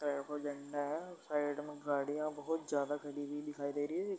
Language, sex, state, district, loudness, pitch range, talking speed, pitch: Hindi, male, Uttar Pradesh, Varanasi, -39 LUFS, 145-150 Hz, 215 wpm, 145 Hz